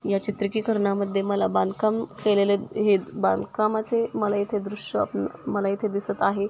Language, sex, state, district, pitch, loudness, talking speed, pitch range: Marathi, female, Maharashtra, Nagpur, 205 Hz, -25 LUFS, 165 wpm, 200-215 Hz